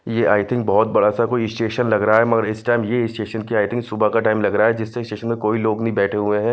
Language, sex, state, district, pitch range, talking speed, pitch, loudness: Hindi, male, Punjab, Fazilka, 105-115 Hz, 305 wpm, 110 Hz, -19 LUFS